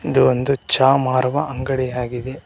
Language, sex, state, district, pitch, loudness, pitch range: Kannada, male, Karnataka, Koppal, 130 Hz, -18 LUFS, 130-135 Hz